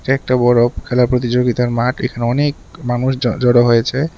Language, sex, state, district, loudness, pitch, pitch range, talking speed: Bengali, male, Tripura, West Tripura, -15 LUFS, 125 Hz, 120-130 Hz, 170 wpm